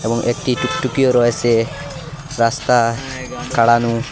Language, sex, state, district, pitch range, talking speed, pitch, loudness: Bengali, male, Assam, Hailakandi, 115-130 Hz, 100 wpm, 125 Hz, -17 LUFS